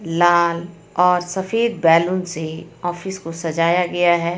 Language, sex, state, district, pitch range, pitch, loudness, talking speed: Hindi, female, Jharkhand, Ranchi, 165-180 Hz, 175 Hz, -19 LUFS, 135 wpm